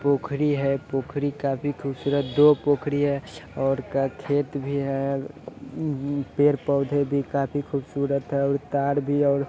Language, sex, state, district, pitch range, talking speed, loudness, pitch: Hindi, male, Bihar, Sitamarhi, 140-145 Hz, 145 wpm, -25 LUFS, 140 Hz